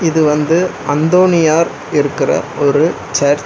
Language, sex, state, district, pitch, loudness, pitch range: Tamil, male, Tamil Nadu, Chennai, 150 Hz, -13 LUFS, 145-165 Hz